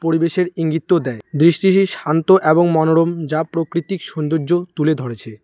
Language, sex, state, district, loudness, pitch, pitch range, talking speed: Bengali, male, West Bengal, Alipurduar, -17 LUFS, 165 Hz, 155-175 Hz, 130 wpm